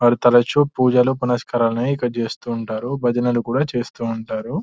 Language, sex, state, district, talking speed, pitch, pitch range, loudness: Telugu, male, Telangana, Nalgonda, 170 wpm, 120 Hz, 115-125 Hz, -19 LUFS